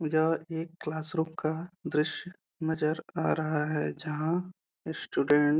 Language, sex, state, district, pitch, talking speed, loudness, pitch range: Hindi, male, Uttar Pradesh, Deoria, 160 Hz, 140 wpm, -31 LUFS, 155-165 Hz